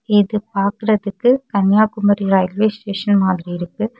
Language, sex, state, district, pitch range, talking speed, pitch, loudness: Tamil, female, Tamil Nadu, Kanyakumari, 195-215 Hz, 105 wpm, 205 Hz, -17 LUFS